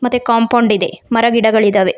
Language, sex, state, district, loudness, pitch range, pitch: Kannada, female, Karnataka, Bangalore, -13 LUFS, 215-240 Hz, 230 Hz